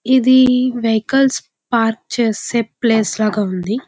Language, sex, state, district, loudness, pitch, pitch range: Telugu, female, Andhra Pradesh, Visakhapatnam, -16 LUFS, 230 Hz, 220-255 Hz